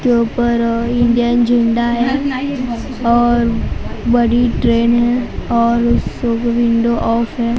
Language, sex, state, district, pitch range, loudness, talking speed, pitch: Hindi, female, Maharashtra, Mumbai Suburban, 235-240 Hz, -15 LUFS, 120 wpm, 235 Hz